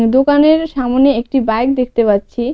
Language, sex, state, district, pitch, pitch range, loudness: Bengali, female, West Bengal, Cooch Behar, 255 Hz, 230-275 Hz, -13 LUFS